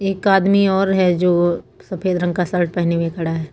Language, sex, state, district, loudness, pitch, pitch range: Hindi, female, Uttar Pradesh, Lucknow, -18 LUFS, 180 Hz, 175-190 Hz